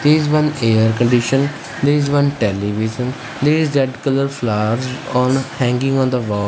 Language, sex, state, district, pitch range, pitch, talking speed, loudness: English, male, Punjab, Fazilka, 115-140 Hz, 130 Hz, 175 wpm, -17 LUFS